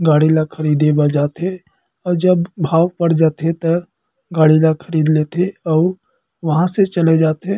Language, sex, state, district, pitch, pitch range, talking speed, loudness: Chhattisgarhi, male, Chhattisgarh, Kabirdham, 165 Hz, 155-180 Hz, 160 wpm, -16 LUFS